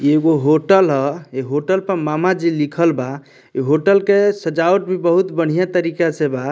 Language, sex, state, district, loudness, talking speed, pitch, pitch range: Bhojpuri, male, Bihar, Muzaffarpur, -16 LUFS, 195 wpm, 165 Hz, 150-185 Hz